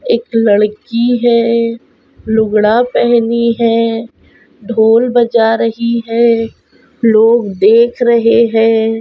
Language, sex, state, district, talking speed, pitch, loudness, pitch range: Hindi, female, Rajasthan, Nagaur, 95 wpm, 230 Hz, -11 LUFS, 225-235 Hz